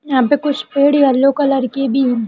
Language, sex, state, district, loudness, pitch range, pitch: Hindi, female, Uttarakhand, Uttarkashi, -14 LUFS, 260-285 Hz, 275 Hz